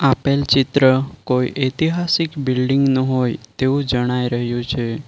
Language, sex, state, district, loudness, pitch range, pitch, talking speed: Gujarati, male, Gujarat, Valsad, -18 LUFS, 125-140 Hz, 130 Hz, 130 wpm